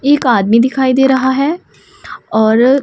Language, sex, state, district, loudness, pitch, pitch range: Hindi, female, Punjab, Pathankot, -12 LUFS, 260 Hz, 240-270 Hz